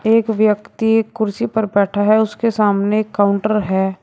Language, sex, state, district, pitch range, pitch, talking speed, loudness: Hindi, male, Uttar Pradesh, Shamli, 205-220 Hz, 215 Hz, 150 wpm, -16 LUFS